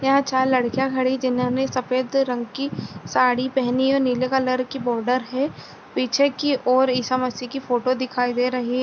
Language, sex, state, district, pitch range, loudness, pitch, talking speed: Hindi, female, Uttarakhand, Tehri Garhwal, 250-265 Hz, -22 LUFS, 255 Hz, 205 wpm